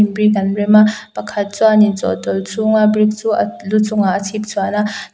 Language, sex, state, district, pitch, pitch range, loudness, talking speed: Mizo, female, Mizoram, Aizawl, 210 Hz, 200-215 Hz, -15 LUFS, 220 wpm